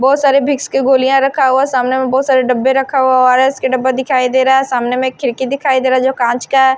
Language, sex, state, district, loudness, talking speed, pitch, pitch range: Hindi, female, Himachal Pradesh, Shimla, -13 LUFS, 290 wpm, 260 Hz, 255-270 Hz